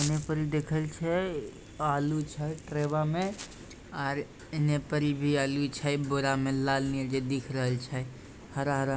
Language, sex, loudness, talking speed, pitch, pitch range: Maithili, male, -31 LUFS, 155 wpm, 145 Hz, 135-150 Hz